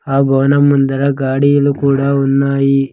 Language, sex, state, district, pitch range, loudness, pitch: Telugu, male, Andhra Pradesh, Sri Satya Sai, 135-140 Hz, -13 LUFS, 140 Hz